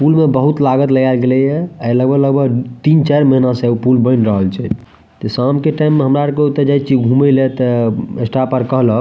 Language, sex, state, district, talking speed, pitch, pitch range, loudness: Maithili, male, Bihar, Madhepura, 240 wpm, 130 Hz, 125-140 Hz, -13 LUFS